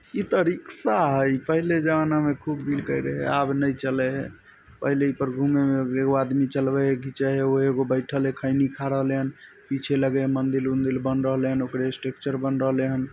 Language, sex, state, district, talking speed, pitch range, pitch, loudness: Maithili, male, Bihar, Samastipur, 210 wpm, 130-140 Hz, 135 Hz, -24 LUFS